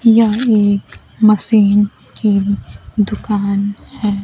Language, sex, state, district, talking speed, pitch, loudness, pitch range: Hindi, female, Bihar, Kaimur, 85 wpm, 210 Hz, -15 LUFS, 200-215 Hz